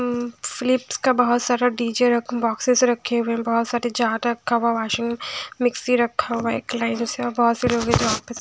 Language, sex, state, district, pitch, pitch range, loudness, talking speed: Hindi, female, Bihar, West Champaran, 240 Hz, 235-245 Hz, -21 LUFS, 165 wpm